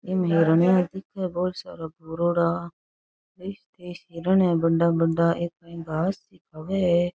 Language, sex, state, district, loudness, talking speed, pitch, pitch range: Rajasthani, female, Rajasthan, Churu, -24 LUFS, 125 wpm, 170 Hz, 165-185 Hz